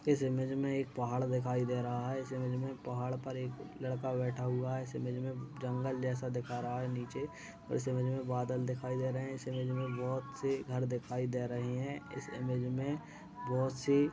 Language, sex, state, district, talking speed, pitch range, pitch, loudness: Hindi, male, Uttar Pradesh, Budaun, 220 wpm, 125-130 Hz, 130 Hz, -37 LUFS